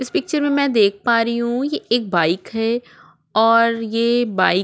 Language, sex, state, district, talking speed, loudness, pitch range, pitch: Hindi, female, Uttar Pradesh, Jyotiba Phule Nagar, 195 wpm, -18 LUFS, 220-245 Hz, 230 Hz